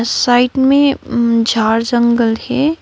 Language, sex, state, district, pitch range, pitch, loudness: Hindi, female, West Bengal, Darjeeling, 230-265 Hz, 240 Hz, -13 LUFS